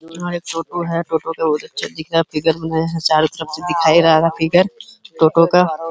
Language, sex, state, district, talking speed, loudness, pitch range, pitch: Hindi, male, Uttar Pradesh, Hamirpur, 215 wpm, -17 LUFS, 160-170 Hz, 165 Hz